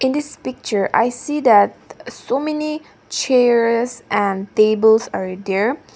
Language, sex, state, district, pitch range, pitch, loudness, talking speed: English, female, Nagaland, Dimapur, 205-265 Hz, 235 Hz, -18 LUFS, 130 wpm